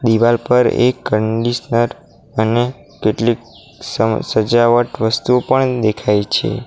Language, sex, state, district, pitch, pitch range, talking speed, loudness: Gujarati, male, Gujarat, Valsad, 120 Hz, 110-120 Hz, 110 wpm, -16 LUFS